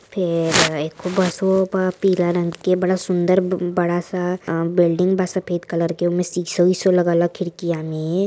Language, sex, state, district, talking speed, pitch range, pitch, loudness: Hindi, female, Uttar Pradesh, Varanasi, 180 wpm, 170-185 Hz, 180 Hz, -19 LUFS